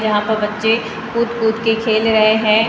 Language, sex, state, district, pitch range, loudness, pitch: Hindi, female, Maharashtra, Gondia, 215-225 Hz, -16 LUFS, 220 Hz